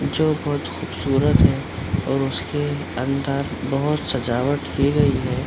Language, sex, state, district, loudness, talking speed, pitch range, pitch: Hindi, male, Bihar, Supaul, -21 LUFS, 130 wpm, 135-145 Hz, 140 Hz